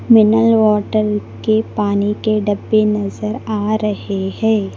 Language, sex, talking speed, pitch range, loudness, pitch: Hindi, female, 125 wpm, 210-220 Hz, -16 LUFS, 215 Hz